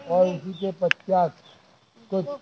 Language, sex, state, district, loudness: Hindi, male, Madhya Pradesh, Bhopal, -25 LUFS